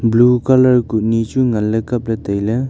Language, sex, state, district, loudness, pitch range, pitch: Wancho, male, Arunachal Pradesh, Longding, -15 LUFS, 110-125 Hz, 115 Hz